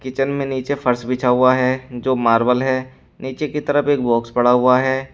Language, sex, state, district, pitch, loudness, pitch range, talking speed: Hindi, male, Uttar Pradesh, Shamli, 130 Hz, -18 LUFS, 125-135 Hz, 210 wpm